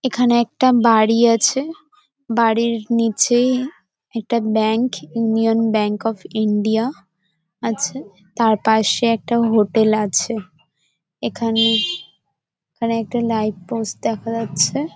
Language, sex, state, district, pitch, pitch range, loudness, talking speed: Bengali, female, West Bengal, Paschim Medinipur, 225 Hz, 210-235 Hz, -18 LUFS, 105 wpm